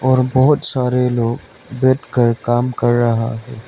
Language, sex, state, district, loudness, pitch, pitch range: Hindi, male, Arunachal Pradesh, Lower Dibang Valley, -16 LUFS, 125 Hz, 120-130 Hz